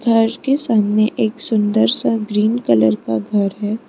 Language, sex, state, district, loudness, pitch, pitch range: Hindi, female, Arunachal Pradesh, Lower Dibang Valley, -17 LUFS, 215 Hz, 205-230 Hz